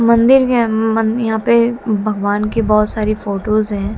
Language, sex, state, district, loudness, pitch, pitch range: Hindi, female, Haryana, Jhajjar, -15 LUFS, 220 Hz, 210-235 Hz